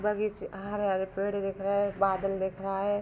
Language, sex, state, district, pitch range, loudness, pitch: Hindi, female, Jharkhand, Sahebganj, 195-205 Hz, -31 LUFS, 195 Hz